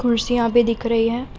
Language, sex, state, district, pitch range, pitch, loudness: Hindi, female, Uttar Pradesh, Budaun, 230-240 Hz, 235 Hz, -19 LUFS